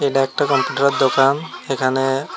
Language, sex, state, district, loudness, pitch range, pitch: Bengali, male, Tripura, West Tripura, -18 LUFS, 135-140 Hz, 135 Hz